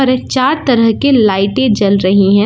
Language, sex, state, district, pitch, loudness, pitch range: Hindi, female, Jharkhand, Palamu, 225 Hz, -11 LUFS, 200-260 Hz